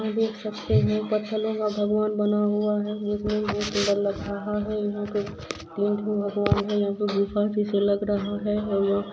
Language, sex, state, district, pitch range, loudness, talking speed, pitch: Maithili, female, Bihar, Supaul, 205-210 Hz, -25 LUFS, 145 wpm, 210 Hz